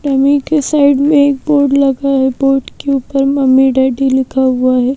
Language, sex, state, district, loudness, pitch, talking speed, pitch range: Hindi, female, Madhya Pradesh, Bhopal, -12 LUFS, 275 Hz, 195 wpm, 265-280 Hz